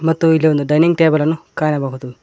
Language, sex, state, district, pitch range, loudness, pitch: Kannada, male, Karnataka, Koppal, 150-160 Hz, -15 LUFS, 155 Hz